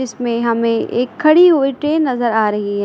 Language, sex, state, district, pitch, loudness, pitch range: Hindi, female, Uttar Pradesh, Lucknow, 245 Hz, -15 LUFS, 230-295 Hz